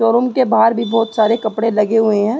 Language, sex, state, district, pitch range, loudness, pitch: Hindi, female, Uttar Pradesh, Gorakhpur, 220-230 Hz, -15 LUFS, 225 Hz